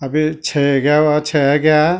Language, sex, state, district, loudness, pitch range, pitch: Garhwali, male, Uttarakhand, Tehri Garhwal, -15 LUFS, 145-155 Hz, 150 Hz